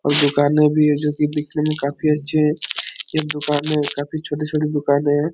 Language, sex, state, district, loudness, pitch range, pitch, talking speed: Hindi, male, Bihar, Supaul, -19 LUFS, 145-150 Hz, 150 Hz, 205 wpm